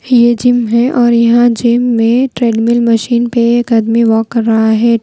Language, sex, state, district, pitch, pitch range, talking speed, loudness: Hindi, female, Bihar, Patna, 235 Hz, 230-240 Hz, 190 wpm, -10 LUFS